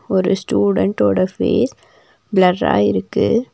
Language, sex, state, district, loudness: Tamil, female, Tamil Nadu, Nilgiris, -17 LUFS